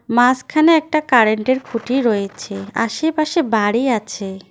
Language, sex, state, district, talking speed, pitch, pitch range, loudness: Bengali, female, West Bengal, Cooch Behar, 120 wpm, 240 Hz, 215-305 Hz, -17 LUFS